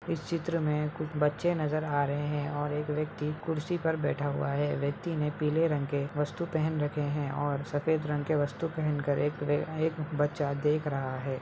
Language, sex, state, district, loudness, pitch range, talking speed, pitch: Hindi, male, Uttar Pradesh, Hamirpur, -31 LUFS, 145-155 Hz, 195 wpm, 150 Hz